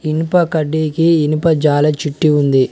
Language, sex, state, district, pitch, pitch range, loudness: Telugu, male, Telangana, Mahabubabad, 155 Hz, 150-165 Hz, -14 LUFS